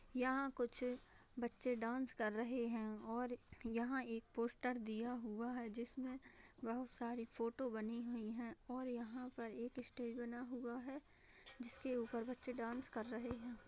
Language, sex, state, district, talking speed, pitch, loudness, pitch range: Hindi, female, Bihar, Vaishali, 160 wpm, 240 Hz, -46 LUFS, 230-250 Hz